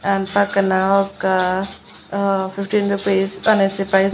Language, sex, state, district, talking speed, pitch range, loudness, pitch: Telugu, female, Andhra Pradesh, Annamaya, 145 wpm, 195-200 Hz, -18 LUFS, 195 Hz